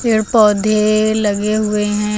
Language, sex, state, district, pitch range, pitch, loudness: Hindi, female, Uttar Pradesh, Lucknow, 210-215 Hz, 215 Hz, -14 LUFS